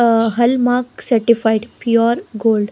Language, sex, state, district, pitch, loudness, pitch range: English, female, Haryana, Jhajjar, 235 Hz, -16 LUFS, 225-240 Hz